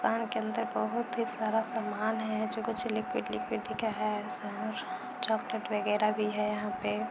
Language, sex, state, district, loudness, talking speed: Hindi, female, Bihar, Jahanabad, -33 LUFS, 170 wpm